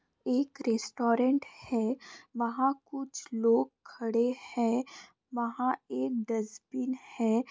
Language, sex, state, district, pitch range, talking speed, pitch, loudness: Hindi, female, Bihar, Bhagalpur, 230-260 Hz, 95 wpm, 240 Hz, -32 LUFS